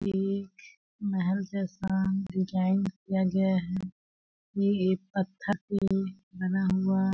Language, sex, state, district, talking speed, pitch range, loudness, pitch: Hindi, female, Chhattisgarh, Balrampur, 120 wpm, 190-195 Hz, -29 LUFS, 190 Hz